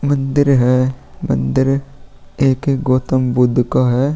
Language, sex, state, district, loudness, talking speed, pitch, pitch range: Hindi, male, Bihar, Vaishali, -16 LUFS, 130 wpm, 130 Hz, 125-135 Hz